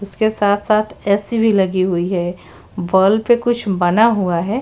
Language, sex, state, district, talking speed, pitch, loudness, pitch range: Hindi, female, Bihar, Patna, 155 wpm, 200 Hz, -16 LUFS, 185-220 Hz